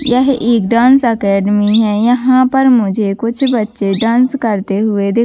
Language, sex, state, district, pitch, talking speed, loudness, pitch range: Hindi, female, Chhattisgarh, Bastar, 230 Hz, 160 wpm, -12 LUFS, 205-250 Hz